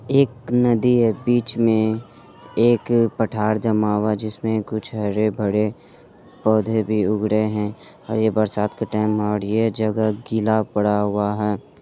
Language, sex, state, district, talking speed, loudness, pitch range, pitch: Hindi, male, Bihar, Supaul, 155 wpm, -21 LUFS, 105-115 Hz, 110 Hz